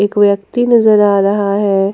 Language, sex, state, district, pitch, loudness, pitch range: Hindi, female, Jharkhand, Ranchi, 205 Hz, -12 LUFS, 200-210 Hz